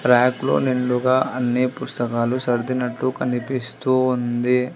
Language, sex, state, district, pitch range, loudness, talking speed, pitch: Telugu, female, Telangana, Hyderabad, 125-130 Hz, -21 LUFS, 100 wpm, 125 Hz